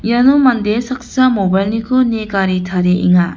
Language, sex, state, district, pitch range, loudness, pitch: Garo, female, Meghalaya, West Garo Hills, 185-255 Hz, -14 LUFS, 220 Hz